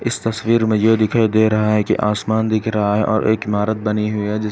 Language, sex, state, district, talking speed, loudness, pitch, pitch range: Hindi, male, Uttar Pradesh, Etah, 280 wpm, -17 LUFS, 110 Hz, 105-110 Hz